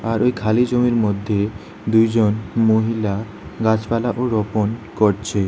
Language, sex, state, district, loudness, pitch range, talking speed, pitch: Bengali, male, West Bengal, Alipurduar, -19 LUFS, 105-115 Hz, 110 wpm, 110 Hz